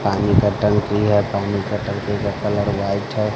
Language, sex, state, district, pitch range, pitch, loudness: Hindi, male, Bihar, West Champaran, 100-105 Hz, 105 Hz, -19 LUFS